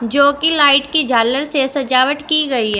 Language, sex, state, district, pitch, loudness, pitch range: Hindi, female, Uttar Pradesh, Shamli, 280 Hz, -13 LUFS, 255-290 Hz